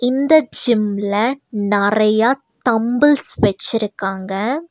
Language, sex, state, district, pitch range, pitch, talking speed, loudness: Tamil, female, Tamil Nadu, Nilgiris, 205-265 Hz, 225 Hz, 65 wpm, -16 LUFS